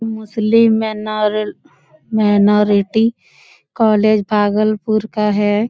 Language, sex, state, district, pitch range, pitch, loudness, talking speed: Hindi, female, Bihar, Bhagalpur, 210-220 Hz, 215 Hz, -15 LUFS, 75 wpm